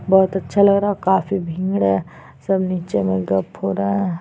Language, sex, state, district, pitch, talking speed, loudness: Hindi, female, Chhattisgarh, Sukma, 180 Hz, 215 wpm, -19 LUFS